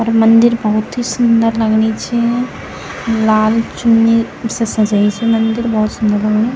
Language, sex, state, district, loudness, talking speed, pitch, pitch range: Garhwali, female, Uttarakhand, Tehri Garhwal, -14 LUFS, 145 wpm, 225 Hz, 215-230 Hz